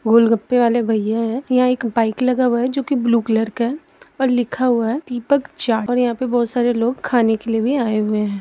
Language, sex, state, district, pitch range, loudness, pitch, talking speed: Hindi, female, Jharkhand, Jamtara, 225-250 Hz, -18 LUFS, 240 Hz, 250 wpm